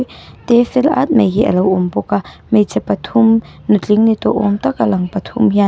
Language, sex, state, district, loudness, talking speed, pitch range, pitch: Mizo, female, Mizoram, Aizawl, -14 LUFS, 210 wpm, 180-225 Hz, 205 Hz